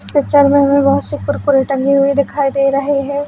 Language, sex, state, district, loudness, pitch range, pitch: Hindi, female, Chhattisgarh, Bilaspur, -13 LUFS, 275-285 Hz, 280 Hz